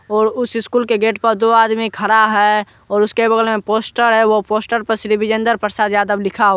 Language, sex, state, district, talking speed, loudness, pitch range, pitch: Hindi, male, Bihar, Supaul, 220 wpm, -15 LUFS, 210-225 Hz, 220 Hz